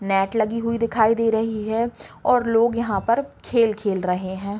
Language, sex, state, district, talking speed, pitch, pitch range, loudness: Hindi, female, Uttar Pradesh, Deoria, 195 wpm, 220 Hz, 195-230 Hz, -22 LUFS